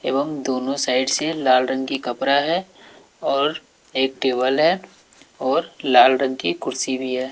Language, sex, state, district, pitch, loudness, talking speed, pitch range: Hindi, male, Bihar, West Champaran, 130 Hz, -20 LUFS, 165 wpm, 130-140 Hz